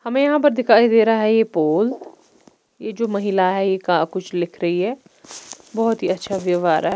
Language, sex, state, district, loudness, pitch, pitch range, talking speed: Hindi, female, Punjab, Pathankot, -18 LUFS, 200 Hz, 180-225 Hz, 215 wpm